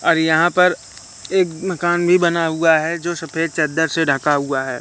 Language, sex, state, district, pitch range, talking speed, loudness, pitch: Hindi, male, Madhya Pradesh, Katni, 150-175 Hz, 200 wpm, -17 LUFS, 160 Hz